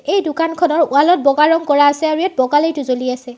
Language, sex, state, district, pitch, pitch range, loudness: Assamese, female, Assam, Sonitpur, 300 Hz, 275-325 Hz, -14 LUFS